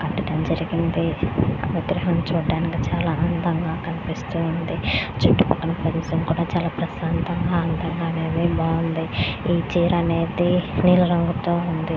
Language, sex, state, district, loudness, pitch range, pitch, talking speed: Telugu, female, Andhra Pradesh, Krishna, -22 LUFS, 165-170 Hz, 165 Hz, 65 wpm